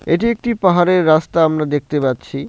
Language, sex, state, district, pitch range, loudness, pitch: Bengali, male, West Bengal, Cooch Behar, 150-185 Hz, -15 LUFS, 165 Hz